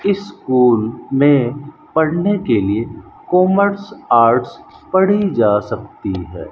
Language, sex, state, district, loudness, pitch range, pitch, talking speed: Hindi, male, Rajasthan, Bikaner, -16 LUFS, 115-195 Hz, 145 Hz, 100 wpm